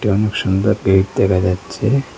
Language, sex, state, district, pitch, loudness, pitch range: Bengali, male, Assam, Hailakandi, 100 Hz, -16 LUFS, 95-110 Hz